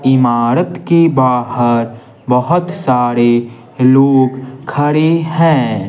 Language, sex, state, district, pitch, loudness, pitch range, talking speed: Hindi, male, Bihar, Patna, 130 Hz, -12 LUFS, 120-150 Hz, 80 wpm